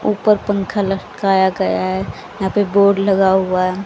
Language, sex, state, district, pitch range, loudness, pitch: Hindi, female, Haryana, Jhajjar, 185-200 Hz, -16 LUFS, 195 Hz